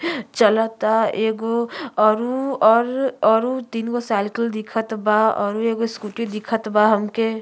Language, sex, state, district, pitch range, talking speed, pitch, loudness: Bhojpuri, female, Uttar Pradesh, Gorakhpur, 215-235 Hz, 130 wpm, 225 Hz, -20 LUFS